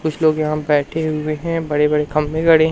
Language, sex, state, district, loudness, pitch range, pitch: Hindi, male, Madhya Pradesh, Umaria, -18 LUFS, 150-160 Hz, 155 Hz